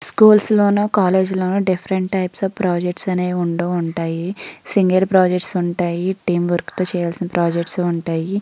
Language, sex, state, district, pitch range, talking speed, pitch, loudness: Telugu, female, Andhra Pradesh, Srikakulam, 175-190 Hz, 145 wpm, 180 Hz, -18 LUFS